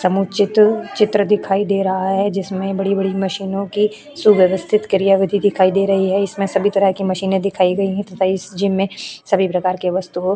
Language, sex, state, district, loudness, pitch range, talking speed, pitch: Hindi, female, Uttarakhand, Tehri Garhwal, -17 LUFS, 190-200 Hz, 185 wpm, 195 Hz